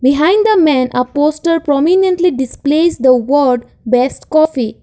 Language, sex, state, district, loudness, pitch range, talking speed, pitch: English, female, Assam, Kamrup Metropolitan, -13 LUFS, 255-330 Hz, 135 wpm, 290 Hz